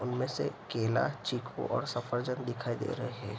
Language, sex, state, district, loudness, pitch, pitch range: Hindi, male, Bihar, Araria, -34 LUFS, 120 Hz, 120-125 Hz